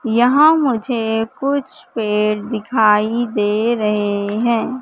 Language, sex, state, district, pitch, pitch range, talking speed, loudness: Hindi, female, Madhya Pradesh, Katni, 225 Hz, 210-245 Hz, 100 wpm, -17 LUFS